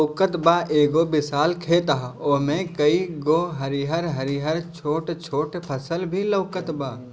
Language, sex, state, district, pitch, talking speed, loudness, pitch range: Bhojpuri, male, Bihar, Gopalganj, 155 Hz, 135 wpm, -23 LUFS, 145-170 Hz